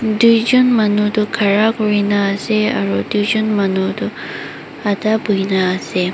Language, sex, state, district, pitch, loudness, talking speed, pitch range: Nagamese, female, Mizoram, Aizawl, 210 Hz, -16 LUFS, 125 wpm, 195-220 Hz